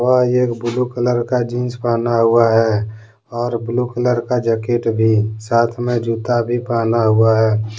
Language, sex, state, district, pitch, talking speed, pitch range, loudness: Hindi, male, Jharkhand, Deoghar, 120 Hz, 170 wpm, 115-120 Hz, -17 LUFS